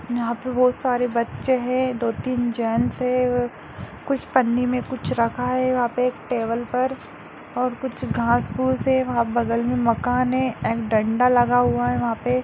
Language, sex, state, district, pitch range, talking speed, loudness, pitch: Hindi, female, Bihar, Darbhanga, 235-255 Hz, 190 wpm, -22 LUFS, 245 Hz